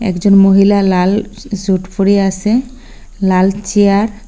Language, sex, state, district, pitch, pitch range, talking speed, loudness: Bengali, female, Assam, Hailakandi, 200 Hz, 190-210 Hz, 125 wpm, -12 LUFS